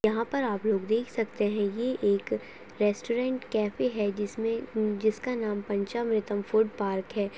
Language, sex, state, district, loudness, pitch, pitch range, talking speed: Hindi, female, Chhattisgarh, Sarguja, -29 LUFS, 215 Hz, 205-230 Hz, 140 wpm